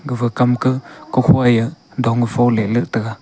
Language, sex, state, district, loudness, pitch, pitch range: Wancho, male, Arunachal Pradesh, Longding, -17 LUFS, 120 Hz, 115-130 Hz